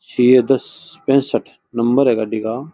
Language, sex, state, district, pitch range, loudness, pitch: Rajasthani, male, Rajasthan, Churu, 115-135 Hz, -16 LUFS, 125 Hz